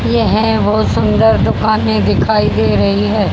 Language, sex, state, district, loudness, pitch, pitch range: Hindi, female, Haryana, Charkhi Dadri, -13 LUFS, 105 Hz, 105-110 Hz